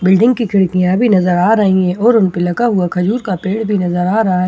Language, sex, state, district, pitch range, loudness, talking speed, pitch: Hindi, female, Bihar, Katihar, 180-220 Hz, -13 LUFS, 280 wpm, 190 Hz